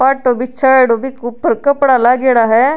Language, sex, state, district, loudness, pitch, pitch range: Rajasthani, female, Rajasthan, Churu, -12 LUFS, 255 Hz, 240-265 Hz